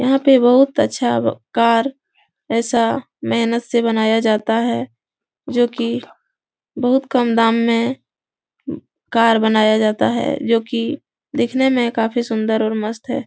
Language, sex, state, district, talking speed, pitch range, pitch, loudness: Hindi, female, Bihar, Jahanabad, 135 wpm, 220-250 Hz, 230 Hz, -17 LUFS